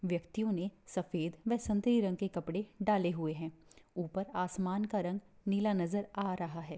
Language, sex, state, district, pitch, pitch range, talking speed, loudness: Hindi, female, Bihar, Darbhanga, 190 Hz, 175-205 Hz, 170 wpm, -36 LUFS